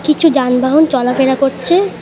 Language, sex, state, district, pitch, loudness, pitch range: Bengali, female, West Bengal, Cooch Behar, 275 Hz, -12 LUFS, 260-315 Hz